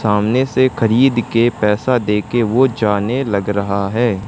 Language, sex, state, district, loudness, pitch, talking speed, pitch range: Hindi, male, Madhya Pradesh, Katni, -16 LUFS, 115 Hz, 170 wpm, 105-125 Hz